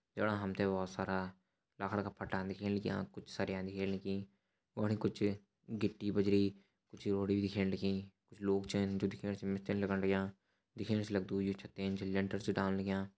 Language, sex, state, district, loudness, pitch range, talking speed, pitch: Hindi, male, Uttarakhand, Uttarkashi, -38 LUFS, 95-100 Hz, 180 wpm, 100 Hz